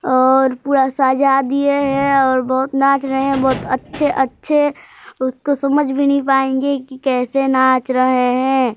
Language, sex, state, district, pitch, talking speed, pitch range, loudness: Hindi, male, Chhattisgarh, Sarguja, 270 Hz, 155 wpm, 260-280 Hz, -16 LUFS